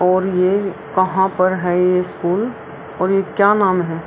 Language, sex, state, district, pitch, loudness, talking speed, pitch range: Hindi, female, Bihar, Araria, 185 Hz, -17 LUFS, 160 wpm, 180-195 Hz